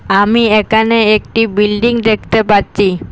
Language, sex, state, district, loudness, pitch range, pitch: Bengali, female, Assam, Hailakandi, -11 LUFS, 210-225 Hz, 215 Hz